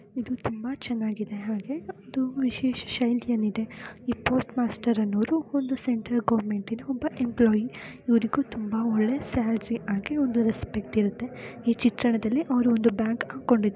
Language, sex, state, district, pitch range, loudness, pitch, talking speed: Kannada, female, Karnataka, Belgaum, 220-255 Hz, -27 LUFS, 235 Hz, 135 wpm